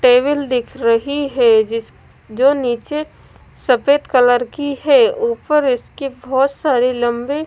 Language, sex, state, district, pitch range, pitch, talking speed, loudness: Hindi, female, Punjab, Kapurthala, 250-295 Hz, 275 Hz, 130 wpm, -16 LUFS